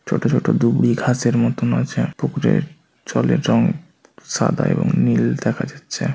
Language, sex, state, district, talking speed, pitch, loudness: Bengali, male, West Bengal, Malda, 135 wpm, 90 Hz, -19 LUFS